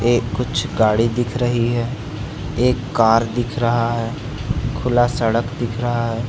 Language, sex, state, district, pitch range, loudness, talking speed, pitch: Hindi, male, Bihar, Samastipur, 115-120 Hz, -19 LUFS, 155 wpm, 120 Hz